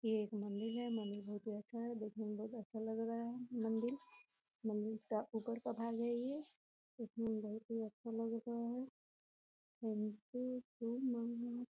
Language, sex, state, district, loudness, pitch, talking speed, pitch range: Hindi, female, Bihar, Gopalganj, -44 LUFS, 230 Hz, 155 wpm, 215-235 Hz